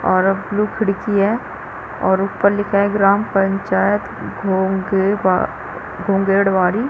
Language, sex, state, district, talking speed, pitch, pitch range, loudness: Hindi, female, Chhattisgarh, Rajnandgaon, 130 wpm, 195 Hz, 190-205 Hz, -17 LUFS